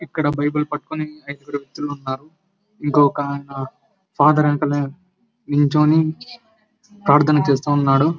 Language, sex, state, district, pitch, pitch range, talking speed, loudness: Telugu, male, Andhra Pradesh, Anantapur, 150 Hz, 145-170 Hz, 105 wpm, -19 LUFS